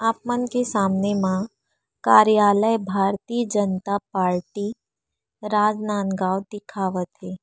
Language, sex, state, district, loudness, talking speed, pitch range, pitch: Chhattisgarhi, female, Chhattisgarh, Rajnandgaon, -22 LUFS, 90 wpm, 190-215 Hz, 205 Hz